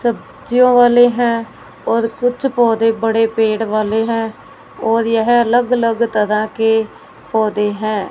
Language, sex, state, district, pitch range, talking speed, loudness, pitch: Hindi, female, Punjab, Fazilka, 220-240 Hz, 135 wpm, -15 LUFS, 225 Hz